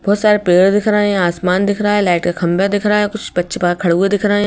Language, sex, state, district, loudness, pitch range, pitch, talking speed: Hindi, female, Madhya Pradesh, Bhopal, -14 LUFS, 175-205 Hz, 200 Hz, 310 wpm